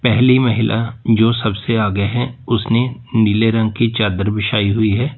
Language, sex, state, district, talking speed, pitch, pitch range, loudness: Hindi, male, Uttar Pradesh, Lalitpur, 160 wpm, 115 Hz, 105-120 Hz, -16 LUFS